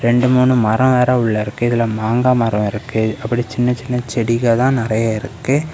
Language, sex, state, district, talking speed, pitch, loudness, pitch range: Tamil, male, Tamil Nadu, Kanyakumari, 165 wpm, 120 Hz, -16 LUFS, 110-125 Hz